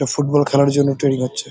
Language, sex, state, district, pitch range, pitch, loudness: Bengali, male, West Bengal, Jalpaiguri, 140-145 Hz, 140 Hz, -17 LUFS